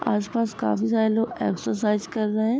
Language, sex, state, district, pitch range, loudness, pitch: Hindi, female, Uttar Pradesh, Jyotiba Phule Nagar, 210-230 Hz, -24 LUFS, 220 Hz